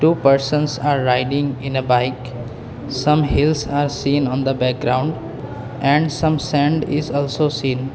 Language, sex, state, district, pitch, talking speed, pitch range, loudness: English, male, Assam, Kamrup Metropolitan, 140 Hz, 150 wpm, 130-150 Hz, -18 LUFS